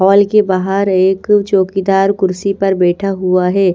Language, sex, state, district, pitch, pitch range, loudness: Hindi, female, Haryana, Rohtak, 195 Hz, 185-200 Hz, -13 LUFS